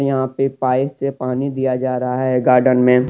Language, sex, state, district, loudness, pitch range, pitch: Hindi, male, Jharkhand, Deoghar, -17 LUFS, 125-135 Hz, 130 Hz